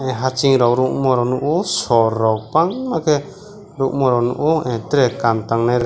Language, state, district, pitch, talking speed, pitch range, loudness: Kokborok, Tripura, West Tripura, 130 Hz, 165 wpm, 120-155 Hz, -17 LUFS